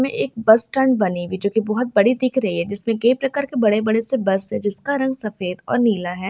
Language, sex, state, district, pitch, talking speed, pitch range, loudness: Hindi, female, West Bengal, Dakshin Dinajpur, 220 Hz, 275 wpm, 200-255 Hz, -19 LUFS